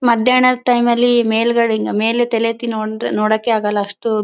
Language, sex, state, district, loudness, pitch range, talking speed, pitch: Kannada, female, Karnataka, Bellary, -15 LUFS, 220-240 Hz, 140 wpm, 230 Hz